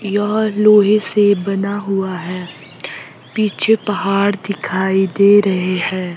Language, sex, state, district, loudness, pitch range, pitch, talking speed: Hindi, female, Himachal Pradesh, Shimla, -15 LUFS, 185-205 Hz, 200 Hz, 115 wpm